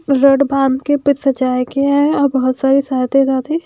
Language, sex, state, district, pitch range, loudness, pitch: Hindi, female, Himachal Pradesh, Shimla, 260-280 Hz, -14 LUFS, 275 Hz